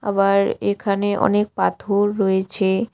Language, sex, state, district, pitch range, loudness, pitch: Bengali, female, West Bengal, Cooch Behar, 195-205 Hz, -19 LUFS, 200 Hz